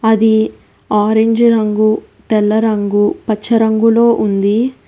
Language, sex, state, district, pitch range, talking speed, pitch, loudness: Telugu, female, Telangana, Hyderabad, 210-225 Hz, 100 wpm, 220 Hz, -13 LUFS